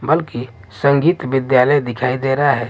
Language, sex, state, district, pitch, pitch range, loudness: Hindi, male, Maharashtra, Washim, 135 Hz, 125-145 Hz, -16 LUFS